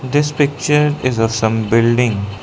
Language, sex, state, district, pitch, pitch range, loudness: English, male, Arunachal Pradesh, Lower Dibang Valley, 125 Hz, 115-145 Hz, -15 LUFS